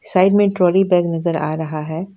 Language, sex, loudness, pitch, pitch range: Hindi, female, -17 LUFS, 175 Hz, 160-190 Hz